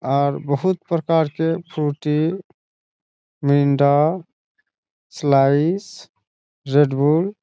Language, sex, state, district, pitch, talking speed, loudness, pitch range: Maithili, male, Bihar, Saharsa, 150 Hz, 80 wpm, -19 LUFS, 140-170 Hz